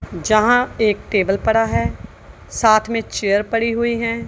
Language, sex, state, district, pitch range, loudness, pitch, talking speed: Hindi, female, Punjab, Kapurthala, 210-230 Hz, -17 LUFS, 225 Hz, 155 wpm